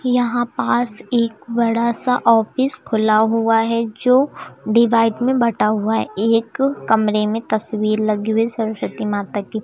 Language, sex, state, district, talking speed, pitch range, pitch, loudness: Hindi, female, Madhya Pradesh, Umaria, 150 wpm, 215-235 Hz, 225 Hz, -17 LUFS